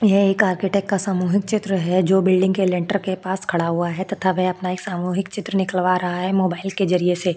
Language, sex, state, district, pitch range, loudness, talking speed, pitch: Hindi, female, Maharashtra, Chandrapur, 180-195 Hz, -20 LUFS, 235 wpm, 185 Hz